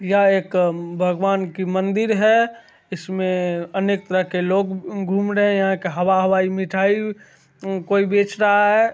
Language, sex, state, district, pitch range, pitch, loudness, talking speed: Maithili, male, Bihar, Supaul, 185-200 Hz, 195 Hz, -19 LUFS, 160 wpm